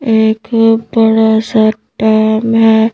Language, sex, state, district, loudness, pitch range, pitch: Hindi, female, Madhya Pradesh, Bhopal, -11 LUFS, 220-225 Hz, 220 Hz